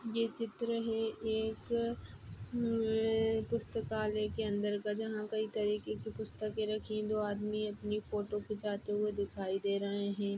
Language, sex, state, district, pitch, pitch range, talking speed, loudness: Hindi, female, Chhattisgarh, Jashpur, 215 Hz, 205-225 Hz, 145 wpm, -36 LUFS